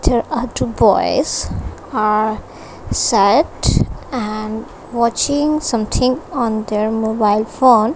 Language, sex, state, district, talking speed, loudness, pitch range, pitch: English, female, Punjab, Kapurthala, 100 wpm, -17 LUFS, 215-255 Hz, 225 Hz